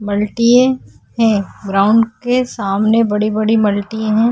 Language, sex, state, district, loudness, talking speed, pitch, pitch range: Hindi, female, Maharashtra, Chandrapur, -15 LUFS, 125 wpm, 220 Hz, 205-230 Hz